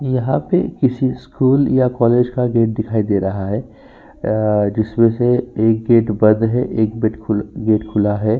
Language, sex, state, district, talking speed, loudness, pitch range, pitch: Hindi, male, Uttar Pradesh, Jyotiba Phule Nagar, 180 wpm, -17 LUFS, 110-125 Hz, 115 Hz